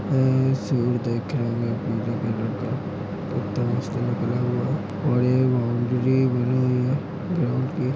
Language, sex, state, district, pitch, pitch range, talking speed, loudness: Hindi, male, Uttar Pradesh, Etah, 125 Hz, 120-130 Hz, 70 wpm, -24 LUFS